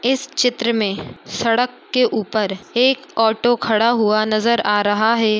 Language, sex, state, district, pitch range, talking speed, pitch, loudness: Hindi, female, Uttar Pradesh, Muzaffarnagar, 215-240 Hz, 155 wpm, 225 Hz, -18 LUFS